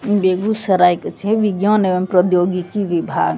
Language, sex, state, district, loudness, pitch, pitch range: Maithili, female, Bihar, Begusarai, -16 LUFS, 185 Hz, 180-205 Hz